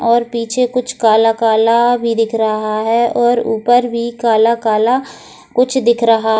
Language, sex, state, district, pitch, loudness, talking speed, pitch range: Hindi, female, Goa, North and South Goa, 235 Hz, -14 LUFS, 140 wpm, 225-240 Hz